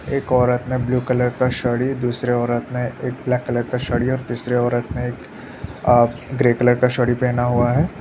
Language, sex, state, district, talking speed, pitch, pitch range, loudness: Hindi, male, Bihar, Araria, 210 wpm, 125 Hz, 120-125 Hz, -19 LUFS